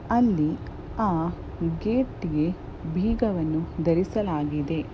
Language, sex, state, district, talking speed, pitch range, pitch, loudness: Kannada, female, Karnataka, Gulbarga, 75 wpm, 160-215 Hz, 170 Hz, -26 LUFS